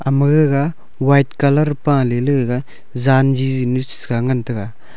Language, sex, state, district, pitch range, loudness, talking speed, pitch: Wancho, male, Arunachal Pradesh, Longding, 125-140 Hz, -17 LUFS, 155 wpm, 135 Hz